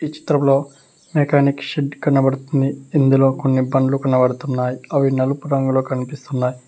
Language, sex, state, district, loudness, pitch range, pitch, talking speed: Telugu, male, Telangana, Hyderabad, -18 LUFS, 130-140 Hz, 135 Hz, 115 wpm